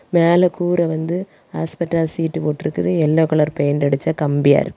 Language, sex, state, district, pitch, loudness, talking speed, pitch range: Tamil, female, Tamil Nadu, Kanyakumari, 160 Hz, -18 LUFS, 150 wpm, 150-170 Hz